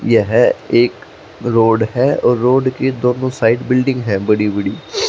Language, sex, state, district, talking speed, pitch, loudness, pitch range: Hindi, male, Haryana, Jhajjar, 155 wpm, 125 Hz, -15 LUFS, 115-130 Hz